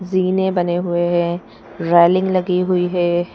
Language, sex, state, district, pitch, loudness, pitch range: Hindi, female, Madhya Pradesh, Bhopal, 180 Hz, -17 LUFS, 175-185 Hz